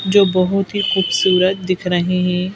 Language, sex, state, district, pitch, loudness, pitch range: Hindi, female, Madhya Pradesh, Bhopal, 185 Hz, -16 LUFS, 180-195 Hz